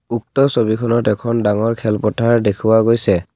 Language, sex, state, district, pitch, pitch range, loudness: Assamese, male, Assam, Kamrup Metropolitan, 115 Hz, 105-120 Hz, -16 LUFS